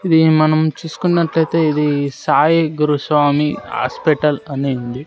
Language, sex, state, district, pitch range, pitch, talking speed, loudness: Telugu, male, Andhra Pradesh, Sri Satya Sai, 145-160 Hz, 150 Hz, 105 wpm, -16 LUFS